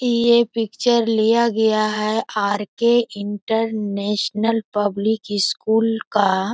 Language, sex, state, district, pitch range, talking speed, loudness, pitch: Hindi, female, Bihar, East Champaran, 205-230 Hz, 100 wpm, -19 LUFS, 220 Hz